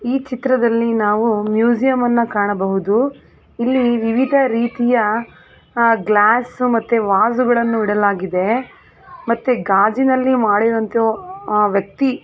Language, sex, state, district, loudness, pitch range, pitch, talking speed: Kannada, female, Karnataka, Belgaum, -16 LUFS, 210-250 Hz, 230 Hz, 70 wpm